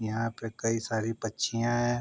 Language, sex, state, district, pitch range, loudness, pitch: Hindi, male, Uttar Pradesh, Varanasi, 110-120 Hz, -31 LUFS, 115 Hz